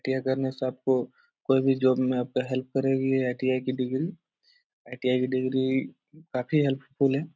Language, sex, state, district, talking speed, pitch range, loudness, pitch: Hindi, male, Bihar, Jahanabad, 170 wpm, 130-140 Hz, -27 LUFS, 130 Hz